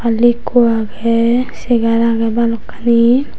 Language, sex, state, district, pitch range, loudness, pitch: Chakma, female, Tripura, Unakoti, 230-240 Hz, -14 LUFS, 235 Hz